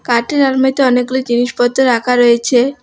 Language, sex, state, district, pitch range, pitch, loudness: Bengali, female, West Bengal, Alipurduar, 245-265 Hz, 250 Hz, -13 LUFS